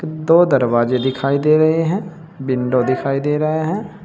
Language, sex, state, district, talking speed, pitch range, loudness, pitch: Hindi, male, Uttar Pradesh, Saharanpur, 160 wpm, 130-165 Hz, -17 LUFS, 155 Hz